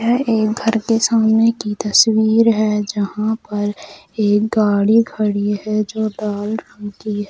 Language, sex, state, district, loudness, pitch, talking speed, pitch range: Hindi, female, Jharkhand, Jamtara, -17 LUFS, 215 Hz, 155 wpm, 210-225 Hz